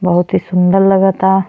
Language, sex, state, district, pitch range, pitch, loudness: Bhojpuri, female, Uttar Pradesh, Deoria, 180-195 Hz, 190 Hz, -12 LUFS